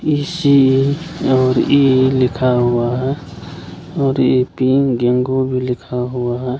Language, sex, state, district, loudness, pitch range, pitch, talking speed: Hindi, male, Bihar, Kishanganj, -15 LUFS, 125-140 Hz, 130 Hz, 135 wpm